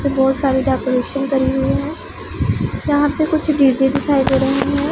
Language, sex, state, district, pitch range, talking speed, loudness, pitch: Hindi, female, Punjab, Pathankot, 265-290 Hz, 170 wpm, -17 LUFS, 275 Hz